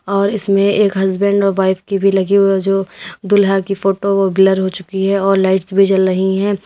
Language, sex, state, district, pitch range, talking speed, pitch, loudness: Hindi, female, Uttar Pradesh, Lalitpur, 190-200 Hz, 225 wpm, 195 Hz, -14 LUFS